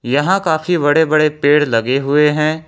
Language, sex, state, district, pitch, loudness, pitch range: Hindi, male, Jharkhand, Ranchi, 150 Hz, -14 LUFS, 145-160 Hz